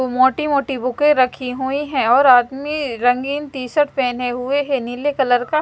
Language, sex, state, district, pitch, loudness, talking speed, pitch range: Hindi, male, Punjab, Fazilka, 265 Hz, -18 LUFS, 180 wpm, 250-285 Hz